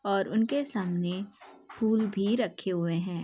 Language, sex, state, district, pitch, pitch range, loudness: Hindi, female, Uttar Pradesh, Jalaun, 200 Hz, 180-220 Hz, -29 LUFS